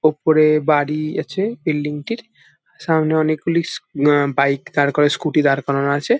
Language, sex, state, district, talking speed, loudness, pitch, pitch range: Bengali, male, West Bengal, Jalpaiguri, 155 wpm, -18 LUFS, 155 Hz, 145-160 Hz